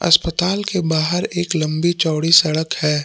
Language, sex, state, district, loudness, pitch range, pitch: Hindi, male, Jharkhand, Palamu, -17 LUFS, 155-175 Hz, 165 Hz